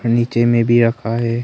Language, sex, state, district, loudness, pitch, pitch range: Hindi, male, Arunachal Pradesh, Longding, -16 LUFS, 115 Hz, 115-120 Hz